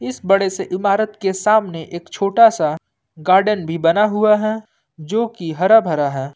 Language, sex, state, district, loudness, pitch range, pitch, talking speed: Hindi, male, Jharkhand, Ranchi, -17 LUFS, 160-215 Hz, 190 Hz, 180 wpm